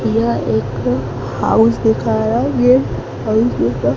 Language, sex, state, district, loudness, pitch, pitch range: Hindi, female, Madhya Pradesh, Dhar, -16 LUFS, 120 Hz, 110-125 Hz